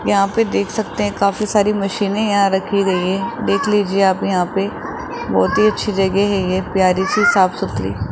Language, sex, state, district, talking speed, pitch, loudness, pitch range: Hindi, male, Rajasthan, Jaipur, 200 wpm, 195 Hz, -17 LUFS, 185-205 Hz